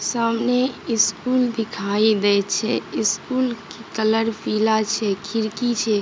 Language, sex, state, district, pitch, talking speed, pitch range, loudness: Maithili, female, Bihar, Begusarai, 220 Hz, 120 wpm, 210-240 Hz, -21 LUFS